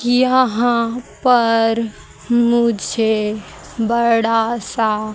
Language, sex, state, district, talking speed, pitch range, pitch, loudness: Hindi, female, Haryana, Jhajjar, 60 wpm, 225-240 Hz, 230 Hz, -17 LUFS